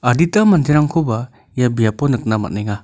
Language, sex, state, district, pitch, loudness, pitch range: Garo, male, Meghalaya, North Garo Hills, 125 Hz, -16 LUFS, 110-150 Hz